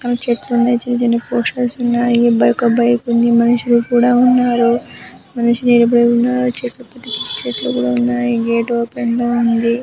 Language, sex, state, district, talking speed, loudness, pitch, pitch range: Telugu, female, Andhra Pradesh, Anantapur, 140 wpm, -15 LUFS, 240 Hz, 235-245 Hz